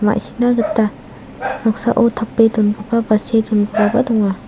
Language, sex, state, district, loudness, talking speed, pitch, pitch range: Garo, female, Meghalaya, South Garo Hills, -16 LUFS, 120 wpm, 220 Hz, 210-230 Hz